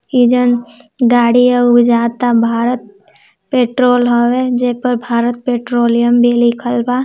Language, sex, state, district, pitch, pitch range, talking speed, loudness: Hindi, female, Bihar, Gopalganj, 240 Hz, 235-245 Hz, 135 wpm, -13 LUFS